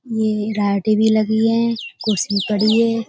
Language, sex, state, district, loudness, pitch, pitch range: Hindi, female, Uttar Pradesh, Budaun, -18 LUFS, 215 Hz, 210-225 Hz